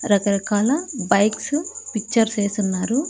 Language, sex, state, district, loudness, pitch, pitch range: Telugu, female, Andhra Pradesh, Annamaya, -21 LUFS, 215 Hz, 205-265 Hz